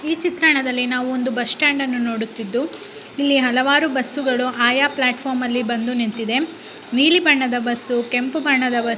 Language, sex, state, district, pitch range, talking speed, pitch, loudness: Kannada, female, Karnataka, Raichur, 245-285 Hz, 120 wpm, 255 Hz, -18 LUFS